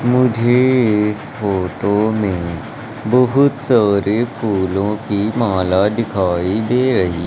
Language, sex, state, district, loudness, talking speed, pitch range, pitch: Hindi, male, Madhya Pradesh, Umaria, -16 LUFS, 100 wpm, 95-120 Hz, 105 Hz